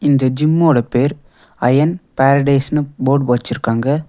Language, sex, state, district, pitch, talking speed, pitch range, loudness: Tamil, male, Tamil Nadu, Nilgiris, 140 Hz, 105 wpm, 130-150 Hz, -15 LUFS